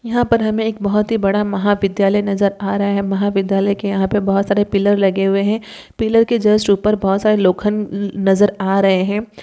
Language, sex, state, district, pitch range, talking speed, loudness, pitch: Hindi, female, Uttar Pradesh, Hamirpur, 195-210 Hz, 210 wpm, -16 LUFS, 200 Hz